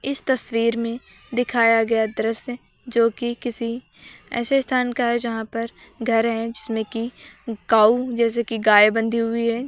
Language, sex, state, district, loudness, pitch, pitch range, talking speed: Hindi, female, Uttar Pradesh, Lucknow, -21 LUFS, 230 Hz, 225-245 Hz, 160 wpm